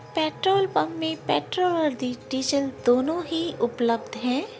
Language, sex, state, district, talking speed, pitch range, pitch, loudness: Angika, female, Bihar, Araria, 145 wpm, 240-330 Hz, 270 Hz, -25 LUFS